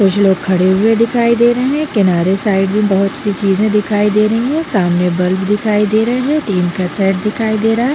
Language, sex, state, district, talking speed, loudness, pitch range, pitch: Hindi, female, Chhattisgarh, Bilaspur, 225 wpm, -13 LUFS, 195-225 Hz, 210 Hz